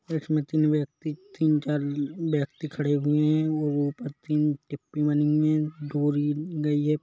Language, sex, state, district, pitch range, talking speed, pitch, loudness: Hindi, male, Chhattisgarh, Rajnandgaon, 145-155 Hz, 120 wpm, 150 Hz, -26 LUFS